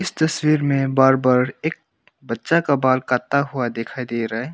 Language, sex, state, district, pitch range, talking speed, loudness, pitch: Hindi, male, Arunachal Pradesh, Longding, 125-150 Hz, 170 wpm, -20 LUFS, 135 Hz